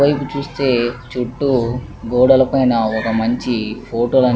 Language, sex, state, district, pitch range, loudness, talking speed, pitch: Telugu, male, Andhra Pradesh, Krishna, 115-130 Hz, -17 LUFS, 140 wpm, 125 Hz